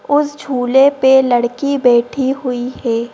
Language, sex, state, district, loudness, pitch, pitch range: Hindi, female, Madhya Pradesh, Bhopal, -14 LUFS, 265 Hz, 245-280 Hz